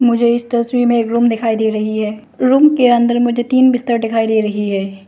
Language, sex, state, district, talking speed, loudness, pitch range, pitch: Hindi, female, Arunachal Pradesh, Lower Dibang Valley, 235 wpm, -14 LUFS, 220-240 Hz, 235 Hz